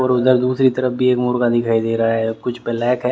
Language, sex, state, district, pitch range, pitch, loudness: Hindi, male, Haryana, Jhajjar, 115-125 Hz, 125 Hz, -17 LUFS